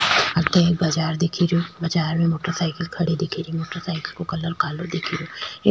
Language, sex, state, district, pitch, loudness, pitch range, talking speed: Rajasthani, female, Rajasthan, Churu, 170 Hz, -22 LUFS, 165-175 Hz, 200 wpm